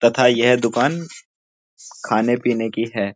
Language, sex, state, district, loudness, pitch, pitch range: Hindi, male, Uttarakhand, Uttarkashi, -18 LUFS, 115 Hz, 110-125 Hz